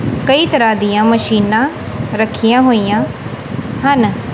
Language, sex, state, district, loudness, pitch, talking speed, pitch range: Punjabi, female, Punjab, Kapurthala, -13 LUFS, 220 Hz, 95 wpm, 215-255 Hz